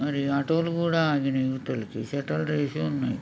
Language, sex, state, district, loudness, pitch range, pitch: Telugu, male, Andhra Pradesh, Krishna, -27 LUFS, 130-155 Hz, 140 Hz